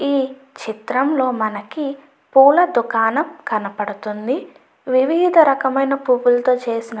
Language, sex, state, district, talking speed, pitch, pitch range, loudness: Telugu, female, Andhra Pradesh, Chittoor, 120 wpm, 260 Hz, 230-280 Hz, -17 LUFS